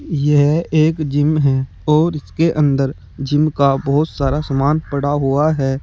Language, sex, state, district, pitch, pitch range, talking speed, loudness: Hindi, male, Uttar Pradesh, Saharanpur, 145 Hz, 140-155 Hz, 155 wpm, -16 LUFS